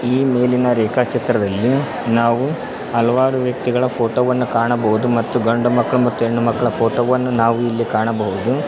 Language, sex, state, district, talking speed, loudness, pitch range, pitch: Kannada, male, Karnataka, Koppal, 140 wpm, -17 LUFS, 115-125 Hz, 120 Hz